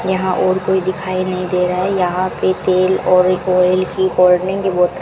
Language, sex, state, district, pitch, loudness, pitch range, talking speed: Hindi, female, Rajasthan, Bikaner, 185 Hz, -15 LUFS, 180-185 Hz, 215 wpm